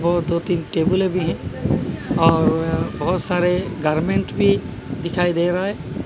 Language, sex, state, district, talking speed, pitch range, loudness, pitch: Hindi, male, Odisha, Malkangiri, 140 wpm, 160-180 Hz, -20 LUFS, 170 Hz